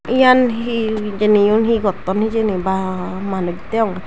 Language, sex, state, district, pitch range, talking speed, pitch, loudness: Chakma, female, Tripura, Dhalai, 190-225 Hz, 145 wpm, 210 Hz, -17 LUFS